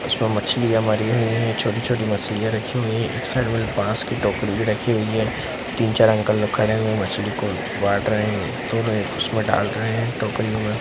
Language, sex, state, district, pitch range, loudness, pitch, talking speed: Hindi, male, Bihar, Saran, 105-115 Hz, -21 LUFS, 110 Hz, 210 wpm